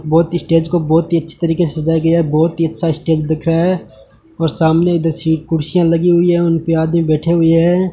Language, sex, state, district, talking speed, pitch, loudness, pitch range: Hindi, male, Rajasthan, Bikaner, 225 wpm, 165 Hz, -14 LUFS, 160-170 Hz